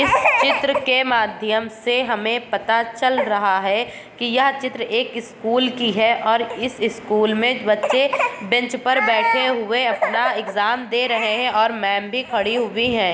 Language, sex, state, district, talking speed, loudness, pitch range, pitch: Hindi, female, Chhattisgarh, Bastar, 180 wpm, -19 LUFS, 220-250 Hz, 235 Hz